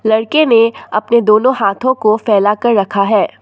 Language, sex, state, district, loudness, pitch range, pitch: Hindi, female, Assam, Sonitpur, -12 LUFS, 210-235 Hz, 220 Hz